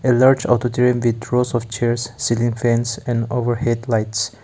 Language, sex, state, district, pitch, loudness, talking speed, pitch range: English, male, Nagaland, Kohima, 120 Hz, -19 LUFS, 160 wpm, 115-120 Hz